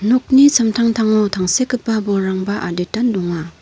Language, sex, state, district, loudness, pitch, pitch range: Garo, female, Meghalaya, North Garo Hills, -16 LUFS, 215 Hz, 190-235 Hz